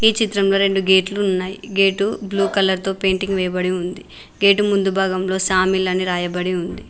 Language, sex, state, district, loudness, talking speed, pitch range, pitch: Telugu, female, Telangana, Mahabubabad, -18 LUFS, 165 wpm, 185-195 Hz, 190 Hz